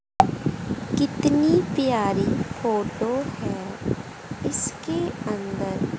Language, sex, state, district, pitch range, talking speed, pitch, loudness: Hindi, female, Haryana, Jhajjar, 200-265 Hz, 60 wpm, 220 Hz, -25 LUFS